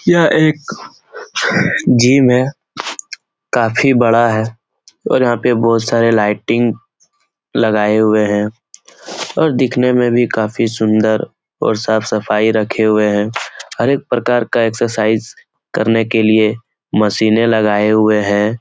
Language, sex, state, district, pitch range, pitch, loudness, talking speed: Hindi, male, Bihar, Lakhisarai, 110-120 Hz, 110 Hz, -14 LUFS, 135 wpm